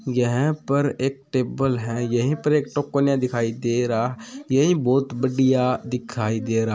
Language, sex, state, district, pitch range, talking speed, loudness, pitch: Hindi, male, Rajasthan, Churu, 120-140 Hz, 135 wpm, -22 LUFS, 130 Hz